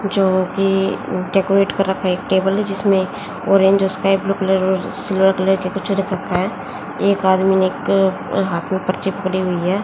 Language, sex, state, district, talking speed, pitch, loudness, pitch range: Hindi, female, Haryana, Jhajjar, 195 wpm, 195 Hz, -18 LUFS, 190-195 Hz